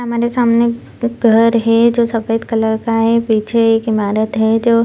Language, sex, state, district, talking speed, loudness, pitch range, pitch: Hindi, female, Bihar, Purnia, 185 wpm, -14 LUFS, 225-235 Hz, 230 Hz